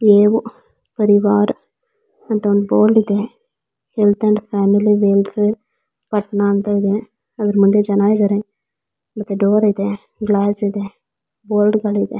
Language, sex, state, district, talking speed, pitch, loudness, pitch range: Kannada, female, Karnataka, Belgaum, 115 wpm, 205 Hz, -16 LUFS, 205-215 Hz